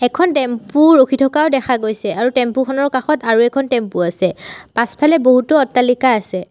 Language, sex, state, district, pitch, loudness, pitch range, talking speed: Assamese, female, Assam, Sonitpur, 255 Hz, -14 LUFS, 230-275 Hz, 165 wpm